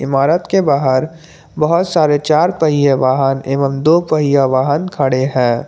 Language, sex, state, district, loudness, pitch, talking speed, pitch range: Hindi, male, Jharkhand, Garhwa, -14 LUFS, 145 Hz, 150 wpm, 135-160 Hz